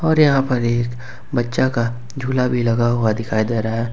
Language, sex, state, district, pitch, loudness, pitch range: Hindi, male, Jharkhand, Ranchi, 120 Hz, -19 LUFS, 115-125 Hz